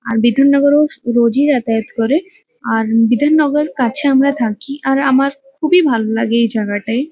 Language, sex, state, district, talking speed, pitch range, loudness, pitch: Bengali, female, West Bengal, Kolkata, 150 wpm, 230-290 Hz, -14 LUFS, 270 Hz